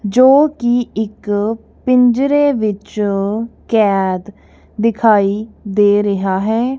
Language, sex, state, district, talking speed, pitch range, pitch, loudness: Punjabi, female, Punjab, Kapurthala, 90 wpm, 205-240 Hz, 215 Hz, -15 LUFS